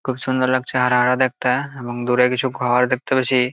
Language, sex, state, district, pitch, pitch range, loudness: Bengali, male, West Bengal, Jalpaiguri, 125 Hz, 125-130 Hz, -19 LUFS